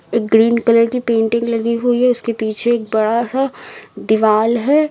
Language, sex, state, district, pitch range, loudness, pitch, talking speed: Hindi, female, Uttar Pradesh, Lucknow, 225-240 Hz, -15 LUFS, 235 Hz, 170 wpm